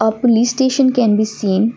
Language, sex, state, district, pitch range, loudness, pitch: English, female, Assam, Kamrup Metropolitan, 215-250 Hz, -15 LUFS, 230 Hz